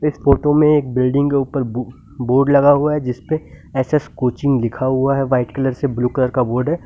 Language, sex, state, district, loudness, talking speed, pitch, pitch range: Hindi, male, Uttar Pradesh, Lucknow, -17 LUFS, 220 wpm, 135 Hz, 125-145 Hz